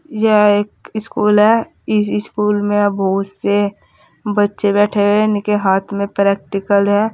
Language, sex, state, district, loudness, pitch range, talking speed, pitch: Hindi, female, Uttar Pradesh, Saharanpur, -15 LUFS, 200-210 Hz, 150 wpm, 205 Hz